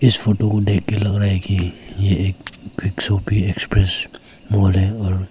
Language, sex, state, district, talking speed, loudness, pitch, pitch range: Hindi, male, Arunachal Pradesh, Papum Pare, 190 wpm, -19 LUFS, 100 Hz, 95-105 Hz